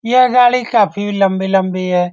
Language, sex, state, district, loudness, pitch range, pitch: Hindi, male, Bihar, Saran, -13 LUFS, 190-245 Hz, 200 Hz